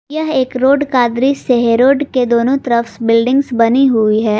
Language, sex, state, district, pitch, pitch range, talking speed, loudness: Hindi, female, Jharkhand, Garhwa, 250 Hz, 235-270 Hz, 190 wpm, -13 LUFS